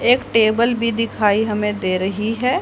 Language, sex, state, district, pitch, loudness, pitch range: Hindi, female, Haryana, Charkhi Dadri, 220 Hz, -18 LUFS, 210-235 Hz